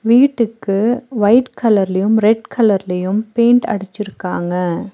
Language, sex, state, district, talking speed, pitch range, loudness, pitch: Tamil, female, Tamil Nadu, Nilgiris, 85 wpm, 195-235 Hz, -15 LUFS, 215 Hz